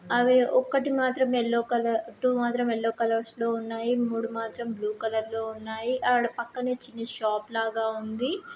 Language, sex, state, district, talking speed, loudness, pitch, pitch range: Telugu, female, Andhra Pradesh, Srikakulam, 170 wpm, -27 LUFS, 230 Hz, 225-250 Hz